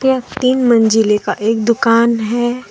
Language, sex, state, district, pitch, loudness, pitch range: Hindi, female, Jharkhand, Deoghar, 235 Hz, -14 LUFS, 225-245 Hz